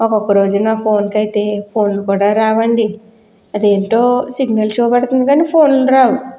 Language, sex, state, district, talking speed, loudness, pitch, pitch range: Telugu, female, Andhra Pradesh, Guntur, 140 wpm, -13 LUFS, 220 Hz, 210-245 Hz